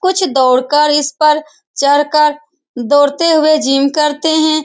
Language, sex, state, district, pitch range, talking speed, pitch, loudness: Hindi, female, Bihar, Saran, 285-310 Hz, 130 wpm, 300 Hz, -12 LUFS